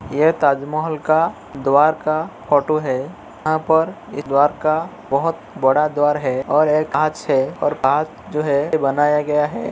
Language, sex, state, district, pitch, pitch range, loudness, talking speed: Hindi, male, Uttar Pradesh, Etah, 150 Hz, 140-155 Hz, -18 LUFS, 160 wpm